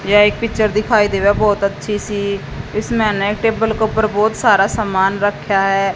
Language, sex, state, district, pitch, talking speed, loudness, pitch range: Hindi, female, Haryana, Jhajjar, 205 Hz, 180 wpm, -16 LUFS, 200-220 Hz